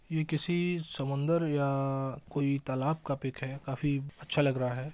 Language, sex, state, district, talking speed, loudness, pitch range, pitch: Hindi, male, Bihar, East Champaran, 180 wpm, -31 LUFS, 135-155 Hz, 140 Hz